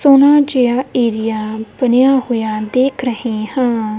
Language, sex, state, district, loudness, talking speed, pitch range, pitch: Punjabi, female, Punjab, Kapurthala, -15 LUFS, 120 wpm, 220-260 Hz, 245 Hz